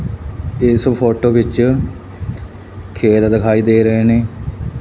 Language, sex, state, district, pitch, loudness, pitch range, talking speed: Punjabi, male, Punjab, Fazilka, 110 Hz, -14 LUFS, 100-115 Hz, 100 wpm